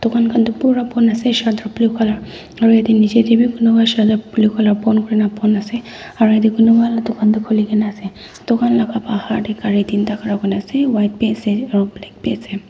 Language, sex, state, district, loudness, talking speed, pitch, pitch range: Nagamese, female, Nagaland, Dimapur, -16 LUFS, 205 wpm, 220 Hz, 210-230 Hz